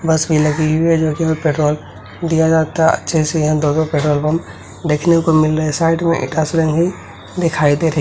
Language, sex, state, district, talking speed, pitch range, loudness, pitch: Hindi, male, Bihar, Begusarai, 225 wpm, 150-165 Hz, -16 LUFS, 160 Hz